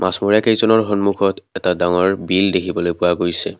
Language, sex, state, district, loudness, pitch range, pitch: Assamese, male, Assam, Kamrup Metropolitan, -17 LUFS, 90-100 Hz, 95 Hz